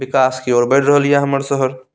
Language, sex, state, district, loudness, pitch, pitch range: Maithili, male, Bihar, Saharsa, -15 LUFS, 135 Hz, 130-140 Hz